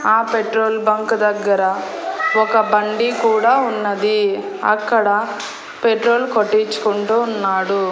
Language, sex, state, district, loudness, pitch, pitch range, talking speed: Telugu, female, Andhra Pradesh, Annamaya, -17 LUFS, 215 Hz, 210-225 Hz, 90 wpm